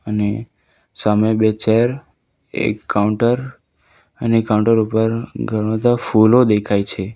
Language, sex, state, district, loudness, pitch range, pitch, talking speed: Gujarati, male, Gujarat, Valsad, -17 LUFS, 105-115 Hz, 110 Hz, 115 wpm